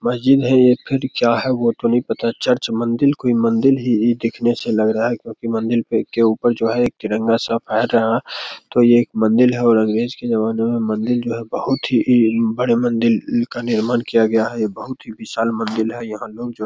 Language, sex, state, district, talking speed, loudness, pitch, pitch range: Hindi, male, Bihar, Begusarai, 240 wpm, -18 LUFS, 115 Hz, 115-120 Hz